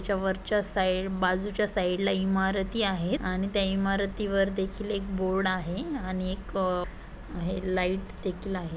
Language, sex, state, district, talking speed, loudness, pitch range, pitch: Marathi, female, Maharashtra, Aurangabad, 165 wpm, -29 LUFS, 185-195 Hz, 190 Hz